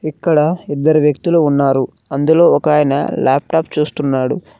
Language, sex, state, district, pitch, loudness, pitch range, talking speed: Telugu, male, Telangana, Mahabubabad, 150 Hz, -14 LUFS, 140-160 Hz, 115 wpm